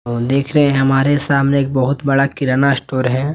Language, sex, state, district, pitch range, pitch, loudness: Hindi, male, Bihar, West Champaran, 130-140 Hz, 135 Hz, -15 LUFS